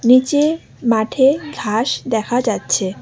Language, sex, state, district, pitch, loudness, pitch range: Bengali, female, West Bengal, Alipurduar, 245 Hz, -17 LUFS, 220-275 Hz